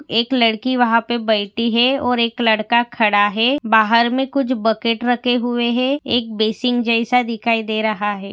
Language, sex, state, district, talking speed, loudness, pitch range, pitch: Hindi, female, Maharashtra, Pune, 180 wpm, -17 LUFS, 220-245 Hz, 235 Hz